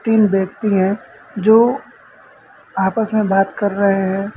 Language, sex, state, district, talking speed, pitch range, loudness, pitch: Hindi, male, Uttar Pradesh, Lucknow, 135 wpm, 195-215 Hz, -16 LUFS, 200 Hz